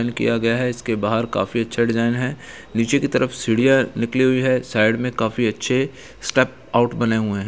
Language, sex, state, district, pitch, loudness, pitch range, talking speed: Hindi, male, Uttar Pradesh, Etah, 120 Hz, -20 LUFS, 115-130 Hz, 200 wpm